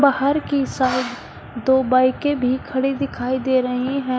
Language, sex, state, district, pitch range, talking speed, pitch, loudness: Hindi, female, Uttar Pradesh, Shamli, 255-275 Hz, 160 wpm, 260 Hz, -20 LUFS